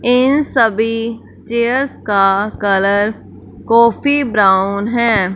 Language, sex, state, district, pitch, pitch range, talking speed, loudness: Hindi, female, Punjab, Fazilka, 225 Hz, 200-240 Hz, 90 wpm, -14 LUFS